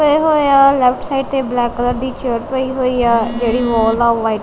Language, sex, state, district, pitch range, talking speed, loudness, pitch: Punjabi, female, Punjab, Kapurthala, 235-270 Hz, 245 wpm, -15 LUFS, 250 Hz